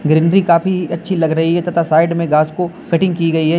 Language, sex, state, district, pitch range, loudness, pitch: Hindi, male, Uttar Pradesh, Lalitpur, 160-175 Hz, -15 LUFS, 170 Hz